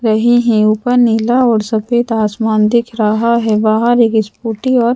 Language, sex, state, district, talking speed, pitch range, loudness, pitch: Hindi, female, Madhya Pradesh, Bhopal, 170 wpm, 215-240 Hz, -13 LUFS, 225 Hz